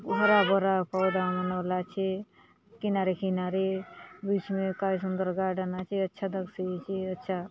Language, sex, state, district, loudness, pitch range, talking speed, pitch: Halbi, female, Chhattisgarh, Bastar, -29 LUFS, 185-195 Hz, 160 wpm, 190 Hz